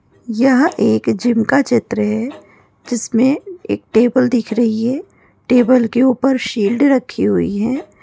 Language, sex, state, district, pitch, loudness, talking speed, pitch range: Hindi, female, Maharashtra, Solapur, 245 Hz, -15 LUFS, 140 wpm, 230-265 Hz